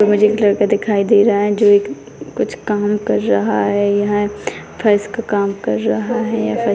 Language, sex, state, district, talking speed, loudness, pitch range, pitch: Hindi, female, Rajasthan, Nagaur, 185 wpm, -16 LUFS, 200-210 Hz, 205 Hz